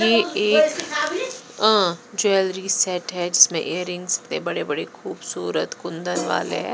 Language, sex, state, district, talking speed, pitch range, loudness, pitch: Hindi, female, Punjab, Pathankot, 125 wpm, 180-230 Hz, -21 LUFS, 205 Hz